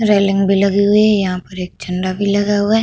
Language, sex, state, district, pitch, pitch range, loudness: Hindi, female, Uttar Pradesh, Budaun, 200 Hz, 185-205 Hz, -15 LUFS